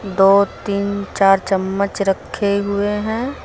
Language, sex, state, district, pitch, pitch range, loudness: Hindi, female, Jharkhand, Deoghar, 200 Hz, 195-200 Hz, -17 LUFS